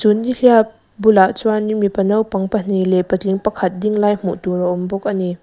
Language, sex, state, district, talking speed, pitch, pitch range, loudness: Mizo, female, Mizoram, Aizawl, 190 wpm, 200 Hz, 185-215 Hz, -16 LUFS